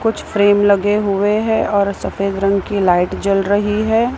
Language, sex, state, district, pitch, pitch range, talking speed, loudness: Hindi, female, Maharashtra, Mumbai Suburban, 205 Hz, 195-210 Hz, 185 wpm, -16 LUFS